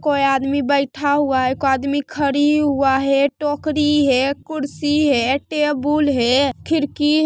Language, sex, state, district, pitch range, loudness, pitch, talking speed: Hindi, female, Bihar, Lakhisarai, 275-295 Hz, -18 LUFS, 285 Hz, 150 wpm